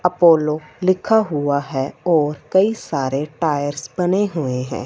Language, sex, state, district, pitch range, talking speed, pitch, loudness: Hindi, female, Punjab, Fazilka, 145-180 Hz, 125 wpm, 155 Hz, -19 LUFS